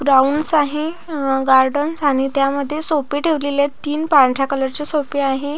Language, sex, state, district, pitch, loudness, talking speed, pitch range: Marathi, female, Maharashtra, Pune, 285 Hz, -17 LUFS, 160 wpm, 275-300 Hz